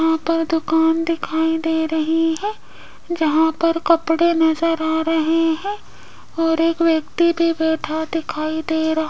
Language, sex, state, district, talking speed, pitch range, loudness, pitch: Hindi, female, Rajasthan, Jaipur, 150 wpm, 320-330 Hz, -19 LUFS, 325 Hz